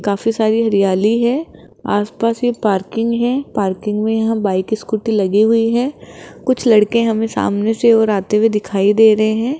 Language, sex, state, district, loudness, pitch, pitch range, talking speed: Hindi, female, Rajasthan, Jaipur, -15 LUFS, 220 Hz, 210-230 Hz, 180 wpm